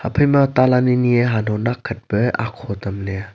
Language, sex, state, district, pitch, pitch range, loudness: Wancho, male, Arunachal Pradesh, Longding, 120 Hz, 105-125 Hz, -18 LUFS